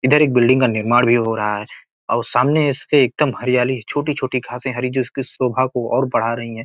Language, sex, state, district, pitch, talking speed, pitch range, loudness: Hindi, male, Bihar, Gopalganj, 125 Hz, 225 wpm, 120-130 Hz, -18 LUFS